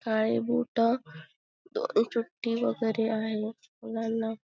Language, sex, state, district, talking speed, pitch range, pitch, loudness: Marathi, female, Maharashtra, Chandrapur, 65 wpm, 220-230 Hz, 225 Hz, -30 LUFS